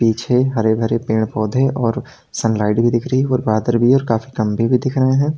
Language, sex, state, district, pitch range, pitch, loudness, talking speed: Hindi, male, Uttar Pradesh, Lalitpur, 110-130 Hz, 120 Hz, -17 LUFS, 235 wpm